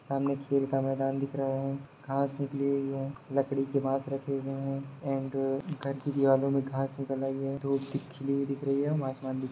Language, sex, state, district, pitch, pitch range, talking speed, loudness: Hindi, male, Bihar, Sitamarhi, 135 Hz, 135-140 Hz, 235 wpm, -31 LUFS